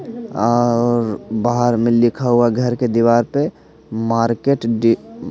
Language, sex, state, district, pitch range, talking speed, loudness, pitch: Hindi, male, Bihar, Patna, 115-125 Hz, 135 wpm, -17 LUFS, 120 Hz